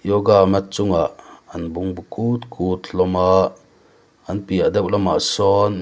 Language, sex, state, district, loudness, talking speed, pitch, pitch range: Mizo, male, Mizoram, Aizawl, -19 LUFS, 155 wpm, 95 Hz, 90-100 Hz